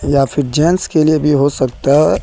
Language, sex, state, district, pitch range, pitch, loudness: Hindi, male, Jharkhand, Deoghar, 140-155 Hz, 145 Hz, -13 LUFS